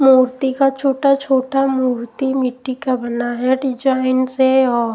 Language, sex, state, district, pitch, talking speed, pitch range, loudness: Hindi, female, Punjab, Pathankot, 260 Hz, 135 wpm, 255-270 Hz, -17 LUFS